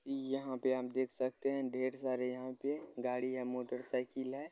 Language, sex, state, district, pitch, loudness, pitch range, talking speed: Hindi, male, Bihar, Lakhisarai, 130 Hz, -39 LUFS, 125-135 Hz, 175 wpm